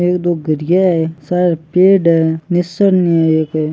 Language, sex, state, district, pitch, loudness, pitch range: Marwari, male, Rajasthan, Churu, 170 Hz, -14 LUFS, 160-180 Hz